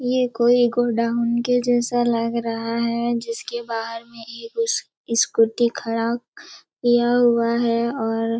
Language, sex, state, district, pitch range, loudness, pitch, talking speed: Hindi, female, Chhattisgarh, Raigarh, 230-240 Hz, -21 LUFS, 235 Hz, 135 wpm